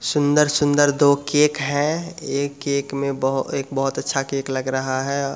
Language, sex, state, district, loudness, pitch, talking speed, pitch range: Hindi, male, Bihar, Muzaffarpur, -21 LUFS, 140 Hz, 155 wpm, 135-145 Hz